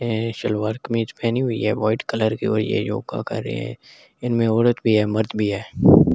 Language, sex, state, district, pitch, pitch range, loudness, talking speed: Hindi, male, Delhi, New Delhi, 110 Hz, 110-115 Hz, -21 LUFS, 215 wpm